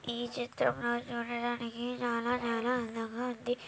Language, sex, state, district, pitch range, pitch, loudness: Telugu, female, Andhra Pradesh, Anantapur, 235-245 Hz, 240 Hz, -34 LUFS